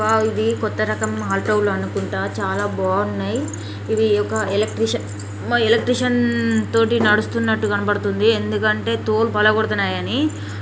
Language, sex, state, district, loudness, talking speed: Telugu, female, Telangana, Karimnagar, -19 LUFS, 120 wpm